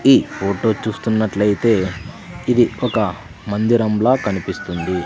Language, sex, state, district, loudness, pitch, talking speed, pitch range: Telugu, male, Andhra Pradesh, Sri Satya Sai, -18 LUFS, 105 Hz, 85 wpm, 95-115 Hz